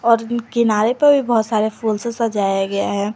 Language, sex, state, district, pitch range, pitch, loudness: Hindi, female, Jharkhand, Garhwa, 210-235 Hz, 225 Hz, -18 LUFS